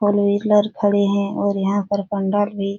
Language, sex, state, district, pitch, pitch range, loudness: Hindi, female, Bihar, Supaul, 200 Hz, 200-205 Hz, -19 LUFS